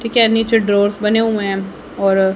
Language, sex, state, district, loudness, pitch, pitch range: Hindi, female, Haryana, Charkhi Dadri, -15 LUFS, 210 Hz, 195-225 Hz